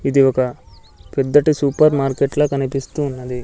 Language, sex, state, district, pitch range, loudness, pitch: Telugu, male, Andhra Pradesh, Sri Satya Sai, 130-145 Hz, -18 LUFS, 135 Hz